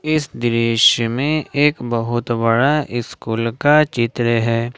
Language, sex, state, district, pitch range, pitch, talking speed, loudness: Hindi, male, Jharkhand, Ranchi, 115-145 Hz, 120 Hz, 125 wpm, -17 LUFS